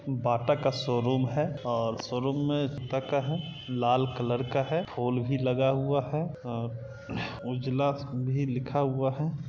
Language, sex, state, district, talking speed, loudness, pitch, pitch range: Hindi, male, Bihar, East Champaran, 150 wpm, -30 LUFS, 135 Hz, 125-145 Hz